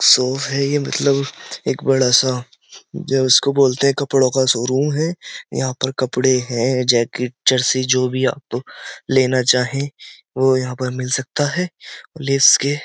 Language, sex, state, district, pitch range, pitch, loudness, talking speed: Hindi, male, Uttar Pradesh, Jyotiba Phule Nagar, 130-140 Hz, 130 Hz, -17 LUFS, 165 wpm